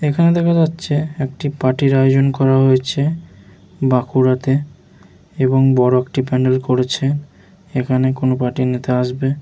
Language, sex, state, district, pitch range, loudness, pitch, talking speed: Bengali, male, West Bengal, Jhargram, 130-145 Hz, -16 LUFS, 135 Hz, 125 wpm